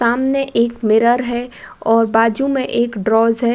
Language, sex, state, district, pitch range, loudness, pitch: Hindi, female, Uttar Pradesh, Budaun, 225-250 Hz, -16 LUFS, 235 Hz